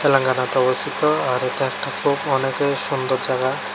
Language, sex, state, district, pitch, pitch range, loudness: Bengali, male, Tripura, West Tripura, 135 Hz, 130-140 Hz, -20 LUFS